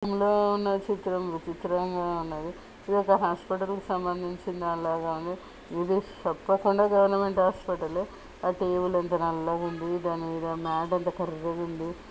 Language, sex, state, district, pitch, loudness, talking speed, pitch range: Telugu, female, Telangana, Nalgonda, 180 Hz, -28 LUFS, 145 wpm, 170-195 Hz